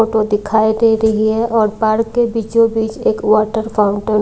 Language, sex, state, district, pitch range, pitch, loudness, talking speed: Hindi, female, Maharashtra, Mumbai Suburban, 215-225 Hz, 220 Hz, -15 LUFS, 185 wpm